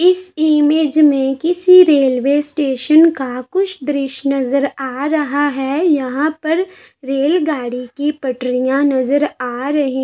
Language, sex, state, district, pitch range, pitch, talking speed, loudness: Hindi, female, Uttar Pradesh, Varanasi, 265-310 Hz, 285 Hz, 130 wpm, -15 LUFS